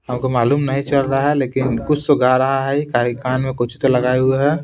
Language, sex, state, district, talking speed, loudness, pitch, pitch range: Hindi, male, Bihar, Patna, 245 wpm, -17 LUFS, 130 Hz, 125-140 Hz